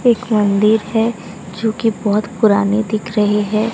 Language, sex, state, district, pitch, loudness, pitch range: Hindi, female, Odisha, Sambalpur, 215 Hz, -16 LUFS, 205-225 Hz